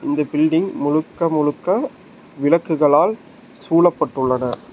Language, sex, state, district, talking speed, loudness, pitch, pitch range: Tamil, male, Tamil Nadu, Nilgiris, 75 wpm, -18 LUFS, 155 Hz, 145-170 Hz